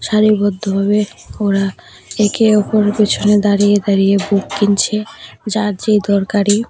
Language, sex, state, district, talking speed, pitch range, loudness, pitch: Bengali, female, Tripura, West Tripura, 105 wpm, 200-215 Hz, -14 LUFS, 205 Hz